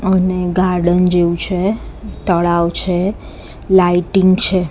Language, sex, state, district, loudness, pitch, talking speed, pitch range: Gujarati, female, Gujarat, Gandhinagar, -15 LUFS, 180 Hz, 100 wpm, 175-190 Hz